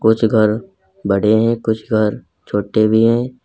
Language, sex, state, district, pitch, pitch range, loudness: Hindi, male, Uttar Pradesh, Lalitpur, 110 Hz, 105-115 Hz, -16 LUFS